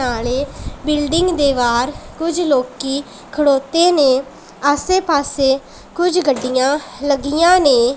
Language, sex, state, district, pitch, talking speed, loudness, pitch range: Punjabi, female, Punjab, Pathankot, 280 Hz, 105 wpm, -16 LUFS, 265-305 Hz